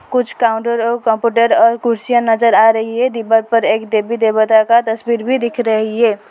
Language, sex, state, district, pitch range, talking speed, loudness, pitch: Hindi, female, Uttar Pradesh, Lalitpur, 220-235 Hz, 200 wpm, -14 LUFS, 230 Hz